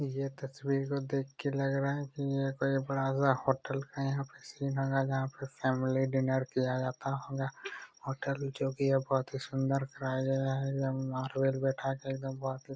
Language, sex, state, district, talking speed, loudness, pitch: Hindi, male, Bihar, Araria, 180 wpm, -33 LUFS, 135 Hz